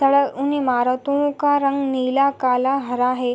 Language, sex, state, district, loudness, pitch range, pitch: Hindi, female, Jharkhand, Sahebganj, -19 LUFS, 255-280 Hz, 275 Hz